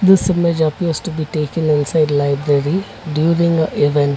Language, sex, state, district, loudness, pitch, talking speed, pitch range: English, male, Karnataka, Bangalore, -16 LUFS, 160 Hz, 160 wpm, 145-170 Hz